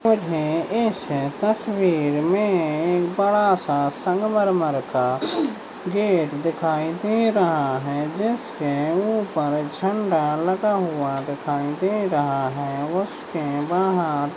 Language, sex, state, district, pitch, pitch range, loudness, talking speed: Hindi, male, Maharashtra, Solapur, 165 Hz, 145-200 Hz, -22 LUFS, 110 wpm